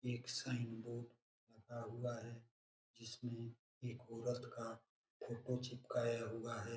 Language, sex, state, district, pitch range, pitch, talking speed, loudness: Hindi, male, Bihar, Jamui, 115-120 Hz, 120 Hz, 125 wpm, -46 LUFS